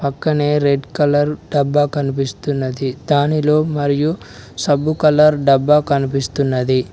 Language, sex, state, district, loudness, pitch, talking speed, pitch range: Telugu, male, Telangana, Mahabubabad, -16 LUFS, 145 Hz, 95 wpm, 135-150 Hz